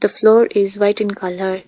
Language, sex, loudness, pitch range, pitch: English, female, -15 LUFS, 190-210 Hz, 205 Hz